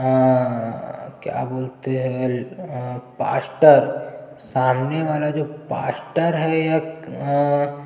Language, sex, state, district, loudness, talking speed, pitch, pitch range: Hindi, male, Chhattisgarh, Jashpur, -21 LUFS, 100 wpm, 135 Hz, 130-155 Hz